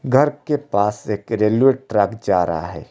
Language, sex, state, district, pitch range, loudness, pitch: Hindi, male, Odisha, Khordha, 100-135 Hz, -19 LUFS, 110 Hz